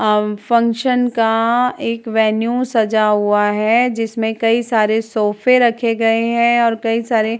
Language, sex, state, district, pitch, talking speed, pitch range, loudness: Hindi, female, Uttar Pradesh, Jalaun, 225 Hz, 155 wpm, 220-235 Hz, -16 LUFS